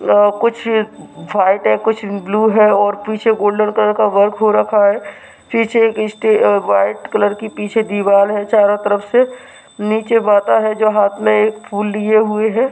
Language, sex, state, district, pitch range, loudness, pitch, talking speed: Hindi, male, Uttar Pradesh, Hamirpur, 205-220 Hz, -14 LUFS, 210 Hz, 180 wpm